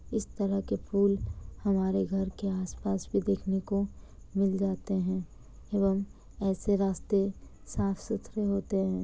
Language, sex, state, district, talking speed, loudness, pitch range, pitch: Hindi, female, Bihar, Kishanganj, 135 wpm, -31 LUFS, 190-200 Hz, 195 Hz